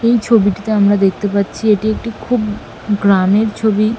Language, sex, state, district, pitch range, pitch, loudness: Bengali, female, West Bengal, Malda, 200-220 Hz, 210 Hz, -14 LUFS